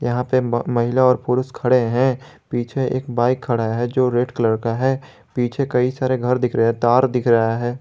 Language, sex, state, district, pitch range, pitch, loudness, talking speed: Hindi, male, Jharkhand, Garhwa, 120-130 Hz, 125 Hz, -19 LUFS, 225 wpm